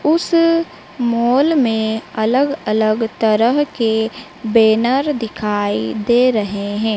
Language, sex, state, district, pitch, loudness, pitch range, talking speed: Hindi, female, Madhya Pradesh, Dhar, 230 Hz, -16 LUFS, 220-270 Hz, 105 wpm